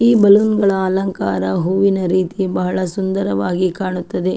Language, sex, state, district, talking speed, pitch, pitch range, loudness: Kannada, female, Karnataka, Chamarajanagar, 125 wpm, 185 Hz, 180-195 Hz, -16 LUFS